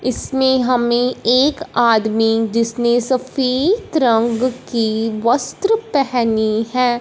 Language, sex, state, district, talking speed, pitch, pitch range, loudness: Hindi, female, Punjab, Fazilka, 95 wpm, 245 Hz, 230-260 Hz, -17 LUFS